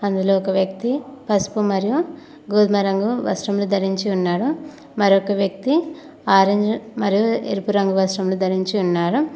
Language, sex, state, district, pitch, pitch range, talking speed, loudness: Telugu, female, Telangana, Mahabubabad, 200 Hz, 195-250 Hz, 120 wpm, -20 LUFS